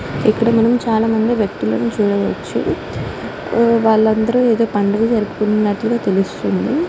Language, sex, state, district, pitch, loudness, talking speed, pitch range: Telugu, female, Andhra Pradesh, Guntur, 220 Hz, -16 LUFS, 105 wpm, 210-230 Hz